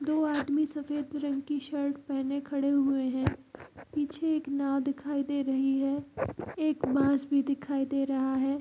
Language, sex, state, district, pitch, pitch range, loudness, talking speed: Hindi, female, Bihar, Darbhanga, 280 Hz, 275-290 Hz, -30 LUFS, 175 wpm